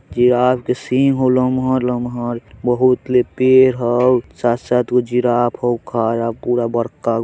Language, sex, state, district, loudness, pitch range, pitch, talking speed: Hindi, male, Bihar, Vaishali, -16 LUFS, 120-125 Hz, 125 Hz, 135 wpm